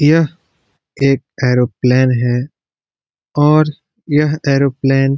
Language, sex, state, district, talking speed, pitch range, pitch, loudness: Hindi, male, Bihar, Jamui, 90 wpm, 130-150 Hz, 140 Hz, -15 LUFS